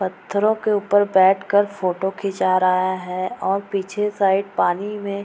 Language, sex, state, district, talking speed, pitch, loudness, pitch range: Hindi, female, Bihar, Purnia, 170 wpm, 195 Hz, -20 LUFS, 185-205 Hz